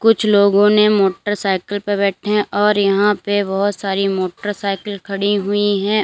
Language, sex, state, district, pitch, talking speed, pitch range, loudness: Hindi, female, Uttar Pradesh, Lalitpur, 205 Hz, 160 wpm, 195-205 Hz, -16 LUFS